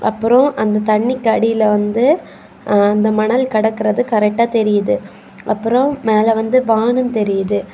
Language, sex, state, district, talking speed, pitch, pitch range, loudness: Tamil, female, Tamil Nadu, Kanyakumari, 125 wpm, 220 Hz, 210-240 Hz, -15 LUFS